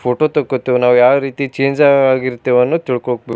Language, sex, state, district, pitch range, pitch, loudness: Kannada, male, Karnataka, Bijapur, 125-140 Hz, 130 Hz, -14 LUFS